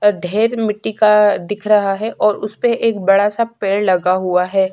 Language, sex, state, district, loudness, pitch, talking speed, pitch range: Hindi, female, Chhattisgarh, Sukma, -15 LUFS, 210 Hz, 190 wpm, 195-215 Hz